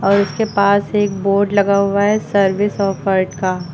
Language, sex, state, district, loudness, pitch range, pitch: Hindi, female, Uttar Pradesh, Lucknow, -16 LUFS, 195-205 Hz, 200 Hz